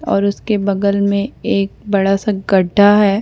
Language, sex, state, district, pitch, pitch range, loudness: Hindi, female, Chhattisgarh, Bastar, 200 Hz, 195-205 Hz, -15 LUFS